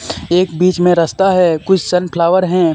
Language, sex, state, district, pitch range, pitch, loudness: Hindi, male, Jharkhand, Deoghar, 170-185 Hz, 180 Hz, -13 LUFS